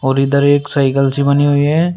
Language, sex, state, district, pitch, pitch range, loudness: Hindi, male, Uttar Pradesh, Shamli, 140 Hz, 135-145 Hz, -13 LUFS